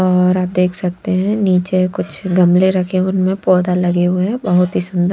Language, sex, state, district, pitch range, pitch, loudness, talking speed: Hindi, female, Bihar, Patna, 180-185 Hz, 185 Hz, -15 LUFS, 210 wpm